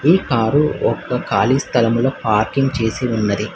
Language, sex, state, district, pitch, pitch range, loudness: Telugu, male, Telangana, Hyderabad, 120 Hz, 110-135 Hz, -17 LUFS